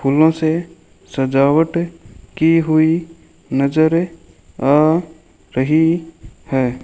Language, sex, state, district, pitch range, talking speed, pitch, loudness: Hindi, male, Rajasthan, Bikaner, 140-165 Hz, 80 wpm, 160 Hz, -16 LUFS